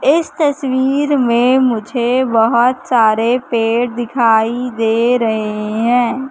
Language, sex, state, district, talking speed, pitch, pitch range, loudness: Hindi, female, Madhya Pradesh, Katni, 105 wpm, 240 Hz, 225-260 Hz, -14 LUFS